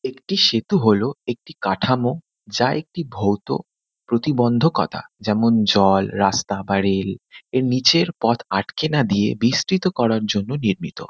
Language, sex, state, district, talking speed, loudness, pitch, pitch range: Bengali, male, West Bengal, Kolkata, 130 wpm, -20 LUFS, 115 Hz, 100-140 Hz